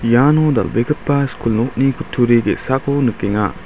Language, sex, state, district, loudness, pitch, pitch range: Garo, male, Meghalaya, West Garo Hills, -16 LUFS, 125 Hz, 115-140 Hz